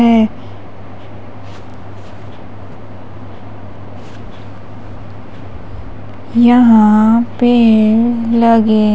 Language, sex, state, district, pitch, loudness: Hindi, female, Madhya Pradesh, Umaria, 105 Hz, -10 LUFS